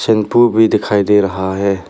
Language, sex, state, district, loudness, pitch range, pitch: Hindi, male, Arunachal Pradesh, Papum Pare, -13 LUFS, 100-110 Hz, 105 Hz